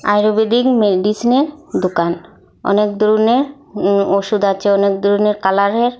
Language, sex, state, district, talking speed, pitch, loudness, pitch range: Bengali, female, Assam, Hailakandi, 130 wpm, 210 Hz, -15 LUFS, 200-235 Hz